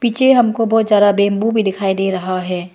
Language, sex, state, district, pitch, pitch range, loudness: Hindi, female, Arunachal Pradesh, Lower Dibang Valley, 205 Hz, 190-225 Hz, -15 LUFS